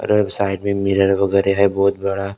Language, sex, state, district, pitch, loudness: Hindi, male, Maharashtra, Gondia, 100 Hz, -17 LUFS